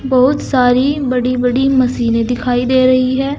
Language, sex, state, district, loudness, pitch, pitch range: Hindi, female, Uttar Pradesh, Saharanpur, -14 LUFS, 255 Hz, 250-265 Hz